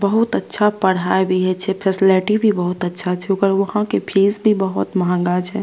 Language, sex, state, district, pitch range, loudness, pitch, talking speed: Maithili, female, Bihar, Purnia, 185-205 Hz, -17 LUFS, 195 Hz, 190 wpm